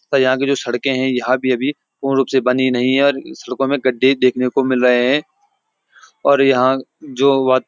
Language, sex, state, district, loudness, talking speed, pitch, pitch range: Hindi, male, Uttarakhand, Uttarkashi, -16 LUFS, 225 wpm, 130 Hz, 130-140 Hz